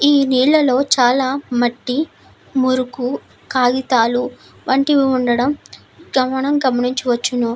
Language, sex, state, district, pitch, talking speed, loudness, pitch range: Telugu, female, Andhra Pradesh, Anantapur, 260 Hz, 80 wpm, -17 LUFS, 245-275 Hz